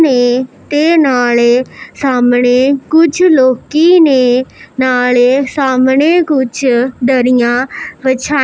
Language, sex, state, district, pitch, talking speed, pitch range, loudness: Punjabi, female, Punjab, Pathankot, 260 Hz, 90 wpm, 250-290 Hz, -11 LUFS